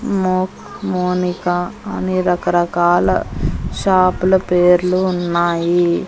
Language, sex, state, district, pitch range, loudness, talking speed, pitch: Telugu, female, Andhra Pradesh, Annamaya, 175-185 Hz, -16 LUFS, 80 wpm, 180 Hz